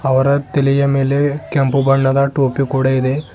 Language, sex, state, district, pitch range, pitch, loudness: Kannada, male, Karnataka, Bidar, 135-140 Hz, 135 Hz, -15 LUFS